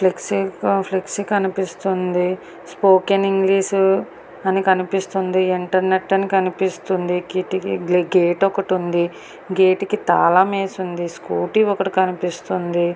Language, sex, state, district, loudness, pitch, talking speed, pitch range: Telugu, female, Andhra Pradesh, Srikakulam, -19 LUFS, 185 Hz, 105 wpm, 180-195 Hz